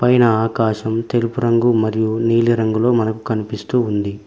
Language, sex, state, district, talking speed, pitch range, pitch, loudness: Telugu, male, Telangana, Mahabubabad, 140 wpm, 110-120 Hz, 115 Hz, -17 LUFS